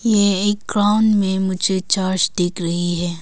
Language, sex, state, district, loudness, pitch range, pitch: Hindi, female, Arunachal Pradesh, Longding, -18 LUFS, 175-205 Hz, 190 Hz